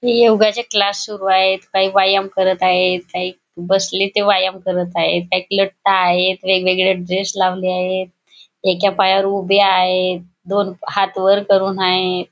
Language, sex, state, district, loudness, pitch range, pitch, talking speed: Marathi, female, Maharashtra, Chandrapur, -16 LUFS, 185-195 Hz, 190 Hz, 150 wpm